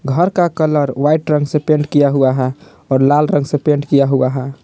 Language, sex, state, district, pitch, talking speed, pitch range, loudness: Hindi, male, Jharkhand, Palamu, 145 Hz, 235 wpm, 135-150 Hz, -14 LUFS